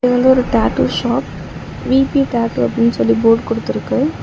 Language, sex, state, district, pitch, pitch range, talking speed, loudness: Tamil, female, Tamil Nadu, Chennai, 245 Hz, 230-260 Hz, 185 wpm, -15 LUFS